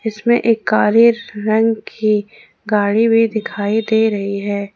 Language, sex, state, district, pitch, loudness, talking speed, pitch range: Hindi, female, Jharkhand, Ranchi, 220 Hz, -16 LUFS, 140 wpm, 210-225 Hz